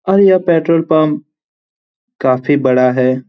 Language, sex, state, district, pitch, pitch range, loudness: Hindi, male, Jharkhand, Jamtara, 150 Hz, 130-165 Hz, -13 LUFS